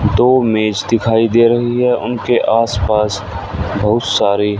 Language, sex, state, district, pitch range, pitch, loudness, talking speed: Hindi, male, Haryana, Rohtak, 100-115 Hz, 110 Hz, -14 LUFS, 145 wpm